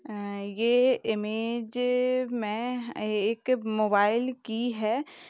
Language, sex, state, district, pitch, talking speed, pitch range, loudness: Hindi, female, Uttar Pradesh, Jyotiba Phule Nagar, 230 Hz, 90 wpm, 215-250 Hz, -28 LUFS